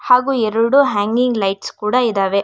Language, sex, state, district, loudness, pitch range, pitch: Kannada, female, Karnataka, Bangalore, -16 LUFS, 205-250 Hz, 230 Hz